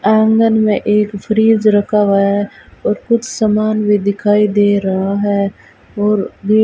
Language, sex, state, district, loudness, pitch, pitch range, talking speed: Hindi, female, Rajasthan, Bikaner, -14 LUFS, 210 Hz, 200-215 Hz, 155 wpm